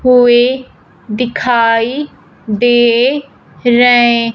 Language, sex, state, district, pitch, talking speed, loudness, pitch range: Hindi, female, Punjab, Fazilka, 240 Hz, 55 wpm, -11 LUFS, 230-250 Hz